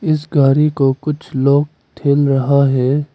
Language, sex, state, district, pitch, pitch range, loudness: Hindi, female, Arunachal Pradesh, Papum Pare, 140 Hz, 135-150 Hz, -15 LUFS